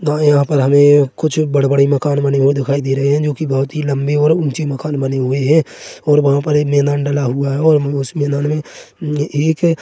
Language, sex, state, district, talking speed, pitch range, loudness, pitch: Hindi, male, Chhattisgarh, Korba, 230 wpm, 140-150 Hz, -15 LUFS, 145 Hz